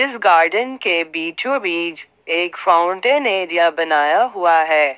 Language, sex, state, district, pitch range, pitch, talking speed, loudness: Hindi, female, Jharkhand, Ranchi, 165-205 Hz, 170 Hz, 130 wpm, -16 LUFS